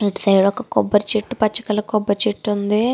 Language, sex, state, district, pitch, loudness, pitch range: Telugu, female, Andhra Pradesh, Chittoor, 210 Hz, -18 LUFS, 205-215 Hz